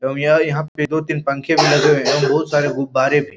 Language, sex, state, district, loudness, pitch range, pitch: Hindi, male, Bihar, Supaul, -16 LUFS, 140-155 Hz, 145 Hz